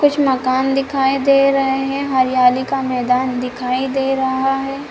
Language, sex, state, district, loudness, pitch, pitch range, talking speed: Hindi, female, Bihar, Supaul, -17 LUFS, 270 Hz, 255-275 Hz, 160 wpm